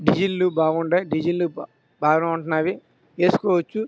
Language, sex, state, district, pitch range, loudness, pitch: Telugu, male, Andhra Pradesh, Krishna, 160-180 Hz, -22 LUFS, 170 Hz